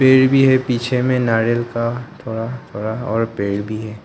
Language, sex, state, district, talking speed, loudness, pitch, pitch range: Hindi, male, Arunachal Pradesh, Longding, 195 wpm, -18 LUFS, 120 Hz, 110-130 Hz